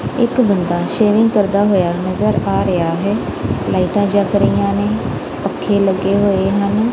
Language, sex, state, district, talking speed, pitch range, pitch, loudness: Punjabi, female, Punjab, Kapurthala, 145 wpm, 175-205 Hz, 195 Hz, -16 LUFS